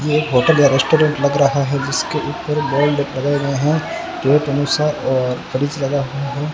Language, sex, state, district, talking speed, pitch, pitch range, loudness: Hindi, male, Rajasthan, Bikaner, 100 wpm, 140 Hz, 140-150 Hz, -17 LUFS